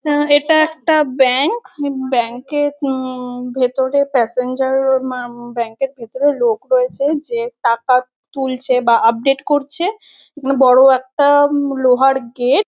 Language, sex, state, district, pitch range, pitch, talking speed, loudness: Bengali, female, West Bengal, North 24 Parganas, 250-290 Hz, 265 Hz, 135 wpm, -16 LUFS